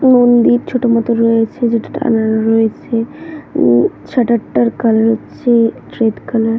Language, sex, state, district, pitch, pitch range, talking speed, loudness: Bengali, female, West Bengal, North 24 Parganas, 230 Hz, 225-245 Hz, 125 wpm, -14 LUFS